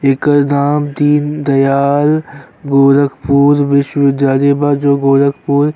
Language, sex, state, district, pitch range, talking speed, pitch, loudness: Bhojpuri, male, Uttar Pradesh, Gorakhpur, 140-145 Hz, 95 wpm, 140 Hz, -12 LUFS